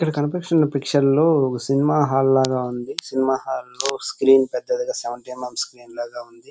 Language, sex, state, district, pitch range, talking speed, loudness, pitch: Telugu, male, Andhra Pradesh, Chittoor, 125-145 Hz, 185 wpm, -21 LUFS, 135 Hz